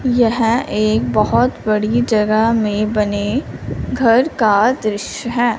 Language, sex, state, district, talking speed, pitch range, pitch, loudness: Hindi, female, Punjab, Fazilka, 120 wpm, 215-240 Hz, 225 Hz, -16 LUFS